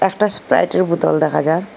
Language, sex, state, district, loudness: Bengali, female, Assam, Hailakandi, -16 LUFS